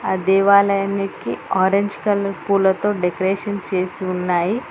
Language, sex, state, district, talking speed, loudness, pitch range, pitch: Telugu, female, Telangana, Hyderabad, 100 wpm, -19 LUFS, 185-200 Hz, 195 Hz